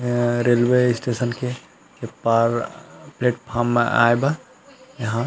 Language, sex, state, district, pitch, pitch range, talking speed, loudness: Chhattisgarhi, male, Chhattisgarh, Rajnandgaon, 120 Hz, 120-125 Hz, 135 wpm, -20 LUFS